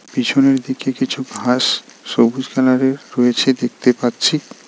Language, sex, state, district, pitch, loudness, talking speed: Bengali, male, West Bengal, Darjeeling, 130 Hz, -17 LUFS, 130 wpm